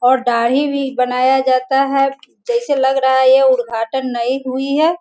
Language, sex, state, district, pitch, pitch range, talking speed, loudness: Hindi, female, Bihar, Sitamarhi, 265 Hz, 255-275 Hz, 180 wpm, -15 LUFS